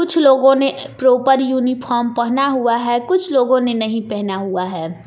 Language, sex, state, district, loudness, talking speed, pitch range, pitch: Hindi, female, Jharkhand, Palamu, -16 LUFS, 180 wpm, 230-270 Hz, 255 Hz